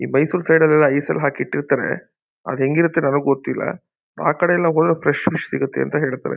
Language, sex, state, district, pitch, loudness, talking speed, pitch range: Kannada, male, Karnataka, Mysore, 155 Hz, -18 LUFS, 180 wpm, 140-165 Hz